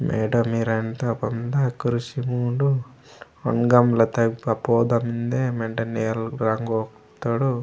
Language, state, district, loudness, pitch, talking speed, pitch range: Gondi, Chhattisgarh, Sukma, -23 LUFS, 120 Hz, 120 wpm, 115-125 Hz